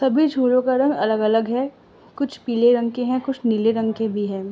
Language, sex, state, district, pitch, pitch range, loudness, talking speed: Hindi, female, Uttar Pradesh, Varanasi, 245 Hz, 225-260 Hz, -20 LUFS, 225 wpm